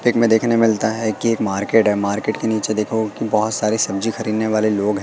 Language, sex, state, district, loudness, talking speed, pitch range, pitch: Hindi, male, Madhya Pradesh, Katni, -18 LUFS, 260 wpm, 105-115 Hz, 110 Hz